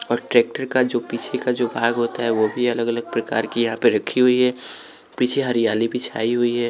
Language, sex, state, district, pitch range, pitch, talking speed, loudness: Hindi, male, Bihar, West Champaran, 115-125 Hz, 120 Hz, 235 wpm, -20 LUFS